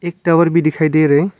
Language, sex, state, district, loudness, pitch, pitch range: Hindi, male, Arunachal Pradesh, Longding, -14 LUFS, 165 Hz, 155-170 Hz